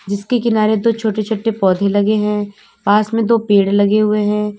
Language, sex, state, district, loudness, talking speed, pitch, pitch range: Hindi, female, Uttar Pradesh, Lalitpur, -15 LUFS, 195 wpm, 210 Hz, 205-220 Hz